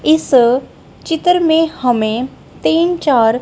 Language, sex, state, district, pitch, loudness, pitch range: Hindi, female, Punjab, Kapurthala, 305 Hz, -14 LUFS, 245-325 Hz